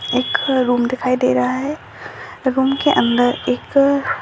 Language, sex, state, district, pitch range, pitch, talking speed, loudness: Hindi, male, Uttarakhand, Tehri Garhwal, 250-275 Hz, 255 Hz, 155 wpm, -17 LUFS